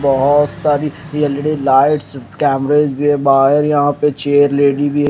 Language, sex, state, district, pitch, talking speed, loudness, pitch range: Hindi, male, Bihar, Kaimur, 145 Hz, 165 wpm, -14 LUFS, 140-150 Hz